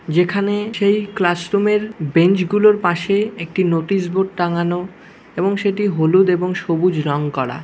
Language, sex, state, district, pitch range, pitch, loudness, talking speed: Bengali, male, West Bengal, Malda, 170-200 Hz, 185 Hz, -17 LUFS, 150 wpm